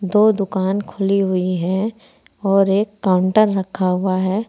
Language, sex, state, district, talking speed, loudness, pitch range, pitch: Hindi, female, Uttar Pradesh, Saharanpur, 145 wpm, -18 LUFS, 185-205 Hz, 195 Hz